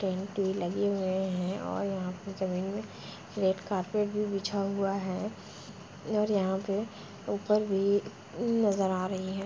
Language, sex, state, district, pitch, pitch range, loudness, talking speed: Hindi, female, Uttar Pradesh, Jalaun, 195 Hz, 190-205 Hz, -31 LUFS, 160 wpm